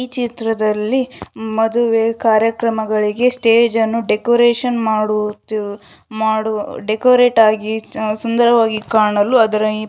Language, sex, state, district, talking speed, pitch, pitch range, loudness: Kannada, female, Karnataka, Shimoga, 85 wpm, 220 Hz, 215-235 Hz, -16 LUFS